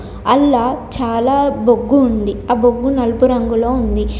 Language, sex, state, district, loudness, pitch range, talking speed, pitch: Telugu, female, Telangana, Komaram Bheem, -15 LUFS, 235-255 Hz, 130 wpm, 245 Hz